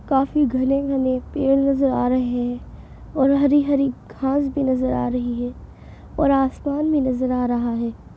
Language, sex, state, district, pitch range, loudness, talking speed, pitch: Hindi, female, Uttar Pradesh, Deoria, 250-280 Hz, -21 LUFS, 160 wpm, 270 Hz